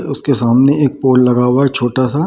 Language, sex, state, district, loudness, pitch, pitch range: Hindi, male, Bihar, Samastipur, -12 LUFS, 130 Hz, 125-140 Hz